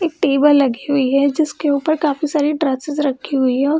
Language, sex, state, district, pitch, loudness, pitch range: Hindi, female, Bihar, Gaya, 290 Hz, -17 LUFS, 275-300 Hz